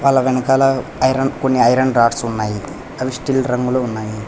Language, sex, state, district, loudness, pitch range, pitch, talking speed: Telugu, male, Telangana, Hyderabad, -17 LUFS, 115-135 Hz, 130 Hz, 155 wpm